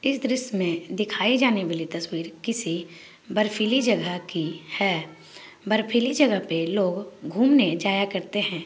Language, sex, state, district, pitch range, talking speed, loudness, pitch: Magahi, female, Bihar, Gaya, 170-230 Hz, 140 wpm, -24 LUFS, 195 Hz